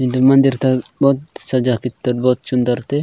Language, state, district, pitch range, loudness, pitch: Gondi, Chhattisgarh, Sukma, 125-135 Hz, -16 LUFS, 130 Hz